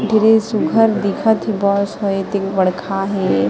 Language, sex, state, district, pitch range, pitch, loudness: Chhattisgarhi, female, Chhattisgarh, Sarguja, 195-220 Hz, 200 Hz, -16 LUFS